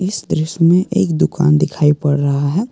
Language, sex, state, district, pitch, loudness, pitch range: Hindi, male, Jharkhand, Garhwa, 165 Hz, -15 LUFS, 150-185 Hz